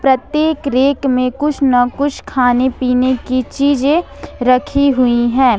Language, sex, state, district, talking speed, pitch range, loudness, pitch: Hindi, female, Jharkhand, Ranchi, 150 wpm, 250-280 Hz, -14 LUFS, 260 Hz